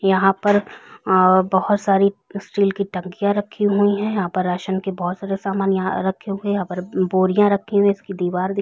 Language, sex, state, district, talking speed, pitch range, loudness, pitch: Hindi, female, Chhattisgarh, Raigarh, 210 wpm, 185-200 Hz, -19 LUFS, 195 Hz